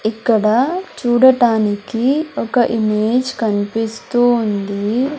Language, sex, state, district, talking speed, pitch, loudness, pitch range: Telugu, female, Andhra Pradesh, Sri Satya Sai, 70 wpm, 230 Hz, -16 LUFS, 215-255 Hz